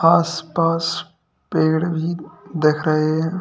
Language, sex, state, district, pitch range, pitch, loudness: Hindi, male, Uttar Pradesh, Lalitpur, 155-170 Hz, 165 Hz, -20 LUFS